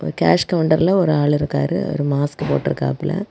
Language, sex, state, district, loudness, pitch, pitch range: Tamil, female, Tamil Nadu, Kanyakumari, -18 LUFS, 145 Hz, 140-170 Hz